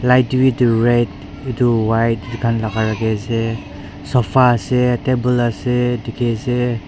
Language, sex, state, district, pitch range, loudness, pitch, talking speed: Nagamese, male, Nagaland, Dimapur, 110-125 Hz, -17 LUFS, 120 Hz, 150 wpm